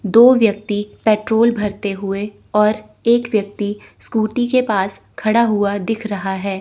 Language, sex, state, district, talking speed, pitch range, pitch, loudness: Hindi, female, Chandigarh, Chandigarh, 145 wpm, 200-225 Hz, 210 Hz, -17 LUFS